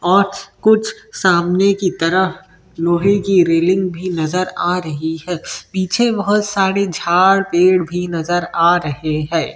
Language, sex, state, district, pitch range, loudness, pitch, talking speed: Hindi, male, Chhattisgarh, Rajnandgaon, 170-195 Hz, -16 LUFS, 180 Hz, 140 wpm